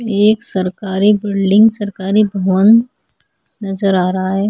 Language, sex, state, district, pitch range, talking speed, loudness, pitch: Hindi, female, Uttar Pradesh, Etah, 190-210 Hz, 135 wpm, -14 LUFS, 200 Hz